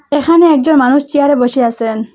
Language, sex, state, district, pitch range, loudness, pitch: Bengali, female, Assam, Hailakandi, 245-290 Hz, -11 LUFS, 285 Hz